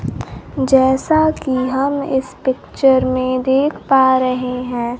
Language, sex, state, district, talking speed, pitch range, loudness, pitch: Hindi, female, Bihar, Kaimur, 120 wpm, 255-270 Hz, -16 LUFS, 260 Hz